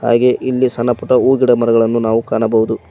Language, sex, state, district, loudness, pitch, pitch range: Kannada, male, Karnataka, Koppal, -14 LUFS, 120 Hz, 115-125 Hz